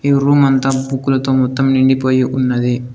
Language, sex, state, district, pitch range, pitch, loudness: Telugu, male, Telangana, Komaram Bheem, 130-135 Hz, 130 Hz, -14 LUFS